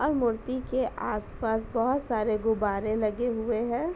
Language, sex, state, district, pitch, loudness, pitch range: Hindi, female, Uttar Pradesh, Etah, 230 Hz, -28 LUFS, 220-255 Hz